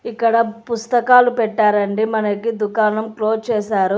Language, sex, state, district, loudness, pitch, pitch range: Telugu, female, Telangana, Hyderabad, -17 LUFS, 220 Hz, 210-230 Hz